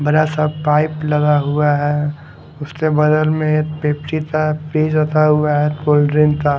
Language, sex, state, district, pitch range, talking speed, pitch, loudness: Hindi, male, Haryana, Charkhi Dadri, 150-155 Hz, 175 wpm, 150 Hz, -16 LUFS